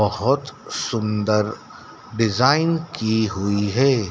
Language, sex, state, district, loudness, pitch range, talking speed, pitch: Hindi, male, Madhya Pradesh, Dhar, -21 LUFS, 105-135 Hz, 90 wpm, 110 Hz